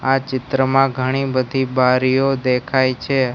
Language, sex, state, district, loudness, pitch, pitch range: Gujarati, male, Gujarat, Gandhinagar, -18 LUFS, 130 Hz, 130-135 Hz